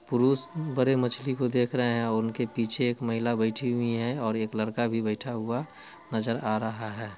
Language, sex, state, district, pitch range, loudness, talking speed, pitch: Hindi, male, Bihar, Muzaffarpur, 110-125 Hz, -28 LUFS, 210 wpm, 120 Hz